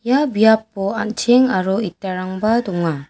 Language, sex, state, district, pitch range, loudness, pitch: Garo, female, Meghalaya, West Garo Hills, 185-230 Hz, -18 LUFS, 210 Hz